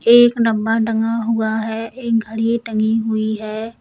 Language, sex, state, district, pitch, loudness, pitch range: Hindi, female, Uttar Pradesh, Lalitpur, 225 Hz, -18 LUFS, 220-230 Hz